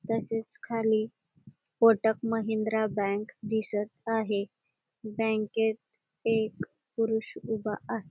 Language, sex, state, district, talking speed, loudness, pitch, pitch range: Marathi, female, Maharashtra, Dhule, 90 wpm, -30 LUFS, 220 Hz, 215-225 Hz